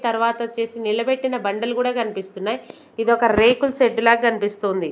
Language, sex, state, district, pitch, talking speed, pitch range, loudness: Telugu, female, Andhra Pradesh, Sri Satya Sai, 230 Hz, 135 wpm, 215-240 Hz, -20 LUFS